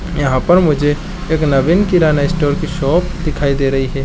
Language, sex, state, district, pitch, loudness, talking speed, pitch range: Chhattisgarhi, male, Chhattisgarh, Jashpur, 150 Hz, -14 LUFS, 190 wpm, 140-175 Hz